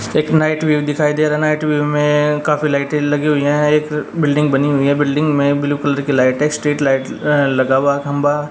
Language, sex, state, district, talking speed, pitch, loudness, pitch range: Hindi, male, Haryana, Jhajjar, 235 wpm, 150 Hz, -15 LUFS, 140-150 Hz